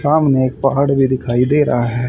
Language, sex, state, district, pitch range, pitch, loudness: Hindi, male, Haryana, Jhajjar, 125-140 Hz, 135 Hz, -15 LUFS